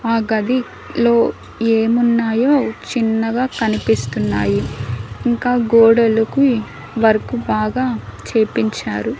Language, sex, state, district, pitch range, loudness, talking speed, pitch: Telugu, female, Andhra Pradesh, Annamaya, 215-240 Hz, -17 LUFS, 70 wpm, 225 Hz